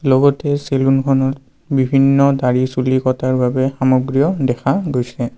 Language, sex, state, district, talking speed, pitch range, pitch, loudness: Assamese, male, Assam, Kamrup Metropolitan, 125 wpm, 130-140 Hz, 135 Hz, -16 LUFS